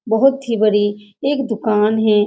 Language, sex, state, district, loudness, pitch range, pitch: Hindi, female, Bihar, Saran, -17 LUFS, 210-235 Hz, 220 Hz